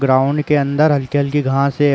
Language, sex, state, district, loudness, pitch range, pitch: Hindi, male, Uttar Pradesh, Jalaun, -16 LUFS, 140-145 Hz, 140 Hz